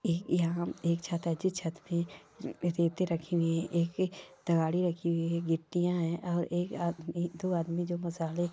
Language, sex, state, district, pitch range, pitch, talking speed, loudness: Hindi, male, Chhattisgarh, Bastar, 170-175 Hz, 170 Hz, 175 wpm, -32 LUFS